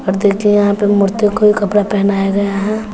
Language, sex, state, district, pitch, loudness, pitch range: Hindi, female, Bihar, West Champaran, 205 Hz, -13 LUFS, 200-210 Hz